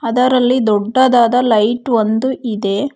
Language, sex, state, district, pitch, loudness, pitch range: Kannada, female, Karnataka, Bangalore, 240 Hz, -14 LUFS, 220-255 Hz